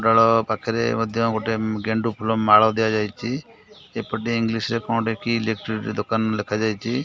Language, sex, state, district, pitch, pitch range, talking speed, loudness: Odia, male, Odisha, Khordha, 115 Hz, 110-115 Hz, 135 wpm, -22 LUFS